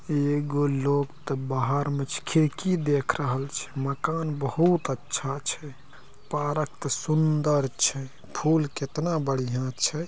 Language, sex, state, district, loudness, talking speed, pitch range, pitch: Maithili, male, Bihar, Purnia, -27 LUFS, 130 wpm, 135-155 Hz, 145 Hz